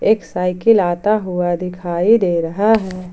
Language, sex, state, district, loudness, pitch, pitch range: Hindi, female, Jharkhand, Ranchi, -16 LUFS, 180 Hz, 175-215 Hz